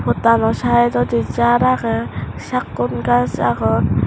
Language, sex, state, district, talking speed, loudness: Chakma, female, Tripura, West Tripura, 105 wpm, -17 LUFS